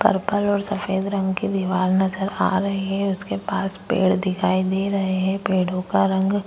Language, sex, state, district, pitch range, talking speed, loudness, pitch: Hindi, female, Goa, North and South Goa, 185-200 Hz, 185 wpm, -22 LUFS, 190 Hz